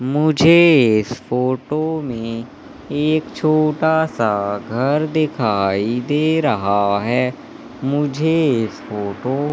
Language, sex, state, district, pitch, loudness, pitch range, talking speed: Hindi, male, Madhya Pradesh, Katni, 135 Hz, -18 LUFS, 115-155 Hz, 100 wpm